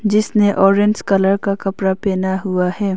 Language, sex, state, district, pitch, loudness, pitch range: Hindi, female, Arunachal Pradesh, Longding, 195 Hz, -16 LUFS, 190-205 Hz